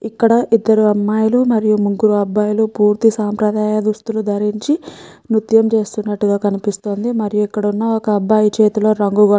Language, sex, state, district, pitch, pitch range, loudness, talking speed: Telugu, female, Andhra Pradesh, Srikakulam, 215 Hz, 210-220 Hz, -15 LUFS, 140 wpm